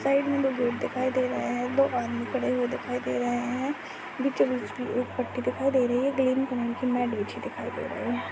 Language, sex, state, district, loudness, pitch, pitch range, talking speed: Hindi, male, Chhattisgarh, Sarguja, -28 LUFS, 255 Hz, 245-265 Hz, 230 wpm